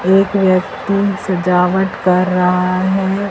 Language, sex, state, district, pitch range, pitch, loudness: Hindi, male, Madhya Pradesh, Dhar, 180-195 Hz, 190 Hz, -15 LUFS